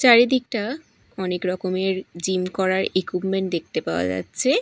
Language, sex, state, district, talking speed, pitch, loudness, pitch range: Bengali, female, Odisha, Malkangiri, 115 wpm, 185 Hz, -23 LUFS, 180-195 Hz